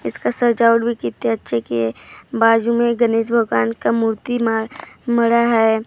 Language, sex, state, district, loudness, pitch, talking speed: Hindi, female, Maharashtra, Gondia, -18 LUFS, 225 Hz, 175 wpm